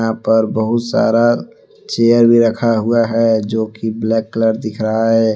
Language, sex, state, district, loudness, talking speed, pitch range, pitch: Hindi, male, Jharkhand, Deoghar, -15 LUFS, 155 wpm, 110-115 Hz, 115 Hz